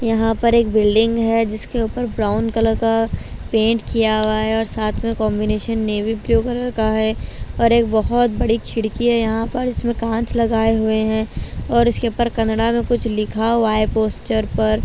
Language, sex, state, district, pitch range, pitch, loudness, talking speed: Hindi, female, Bihar, Patna, 220-230 Hz, 225 Hz, -18 LUFS, 190 wpm